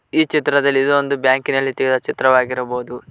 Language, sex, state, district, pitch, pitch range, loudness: Kannada, male, Karnataka, Koppal, 135 Hz, 130-140 Hz, -17 LUFS